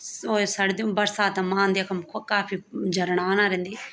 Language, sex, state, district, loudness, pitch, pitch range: Garhwali, female, Uttarakhand, Tehri Garhwal, -24 LUFS, 195 Hz, 185-205 Hz